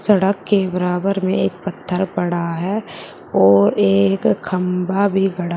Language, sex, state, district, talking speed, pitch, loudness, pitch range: Hindi, female, Uttar Pradesh, Shamli, 140 wpm, 180 Hz, -18 LUFS, 175-195 Hz